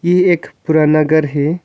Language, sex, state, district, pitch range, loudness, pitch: Hindi, male, Arunachal Pradesh, Longding, 155-175 Hz, -14 LUFS, 155 Hz